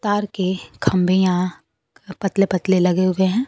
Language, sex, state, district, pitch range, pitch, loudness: Hindi, female, Bihar, Kaimur, 185-195 Hz, 185 Hz, -19 LUFS